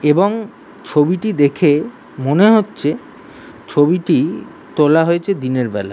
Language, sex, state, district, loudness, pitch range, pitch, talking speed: Bengali, male, West Bengal, Kolkata, -15 LUFS, 145-215 Hz, 170 Hz, 100 wpm